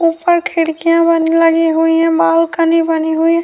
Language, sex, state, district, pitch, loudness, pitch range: Urdu, female, Bihar, Saharsa, 330 Hz, -13 LUFS, 325-335 Hz